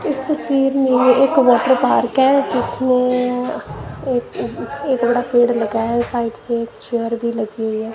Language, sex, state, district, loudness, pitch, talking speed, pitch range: Hindi, female, Punjab, Kapurthala, -17 LUFS, 245 Hz, 165 wpm, 235-260 Hz